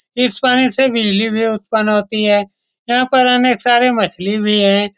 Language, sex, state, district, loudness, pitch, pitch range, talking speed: Hindi, male, Bihar, Saran, -14 LUFS, 220 Hz, 205-250 Hz, 205 wpm